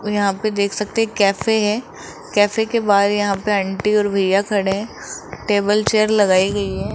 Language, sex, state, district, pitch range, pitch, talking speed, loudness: Hindi, male, Rajasthan, Jaipur, 200-215 Hz, 205 Hz, 190 wpm, -18 LUFS